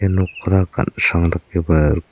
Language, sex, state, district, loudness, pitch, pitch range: Garo, male, Meghalaya, South Garo Hills, -18 LUFS, 85 Hz, 85-95 Hz